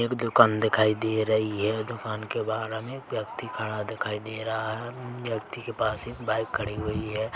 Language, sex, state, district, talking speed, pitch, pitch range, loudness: Hindi, male, Chhattisgarh, Bilaspur, 195 wpm, 110 Hz, 110-115 Hz, -28 LUFS